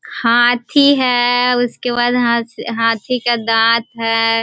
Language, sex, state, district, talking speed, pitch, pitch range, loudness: Hindi, female, Bihar, Sitamarhi, 120 wpm, 240 Hz, 230-245 Hz, -14 LUFS